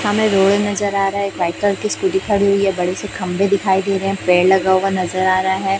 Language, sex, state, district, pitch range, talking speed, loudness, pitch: Hindi, female, Chhattisgarh, Raipur, 190-200 Hz, 290 wpm, -17 LUFS, 195 Hz